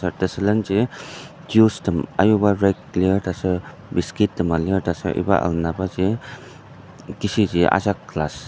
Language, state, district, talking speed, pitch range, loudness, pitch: Ao, Nagaland, Dimapur, 135 wpm, 90-105 Hz, -21 LUFS, 95 Hz